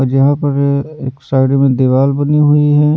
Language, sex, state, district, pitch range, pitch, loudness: Hindi, male, Delhi, New Delhi, 135-145 Hz, 140 Hz, -12 LUFS